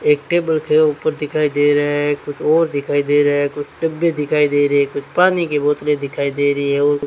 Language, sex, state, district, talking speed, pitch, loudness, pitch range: Hindi, male, Rajasthan, Bikaner, 245 wpm, 145 Hz, -17 LUFS, 145-155 Hz